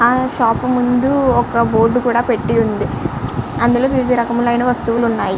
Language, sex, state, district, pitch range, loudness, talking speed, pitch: Telugu, male, Andhra Pradesh, Srikakulam, 225-245 Hz, -15 LUFS, 155 wpm, 235 Hz